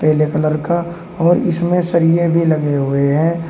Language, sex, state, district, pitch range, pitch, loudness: Hindi, male, Uttar Pradesh, Shamli, 155-170 Hz, 165 Hz, -15 LUFS